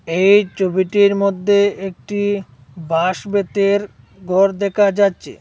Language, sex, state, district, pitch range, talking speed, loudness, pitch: Bengali, male, Assam, Hailakandi, 185-205 Hz, 100 wpm, -17 LUFS, 200 Hz